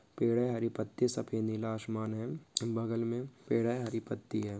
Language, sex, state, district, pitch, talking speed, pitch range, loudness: Hindi, male, Chhattisgarh, Jashpur, 115 Hz, 195 wpm, 110-120 Hz, -35 LUFS